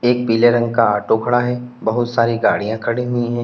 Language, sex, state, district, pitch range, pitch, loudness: Hindi, male, Uttar Pradesh, Lalitpur, 115-120 Hz, 120 Hz, -17 LUFS